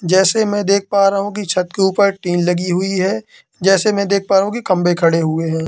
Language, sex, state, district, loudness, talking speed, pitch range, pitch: Hindi, male, Madhya Pradesh, Katni, -16 LUFS, 265 wpm, 175-200 Hz, 195 Hz